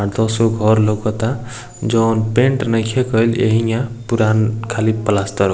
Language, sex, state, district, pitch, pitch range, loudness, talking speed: Bhojpuri, male, Bihar, East Champaran, 115 Hz, 110-115 Hz, -17 LUFS, 150 wpm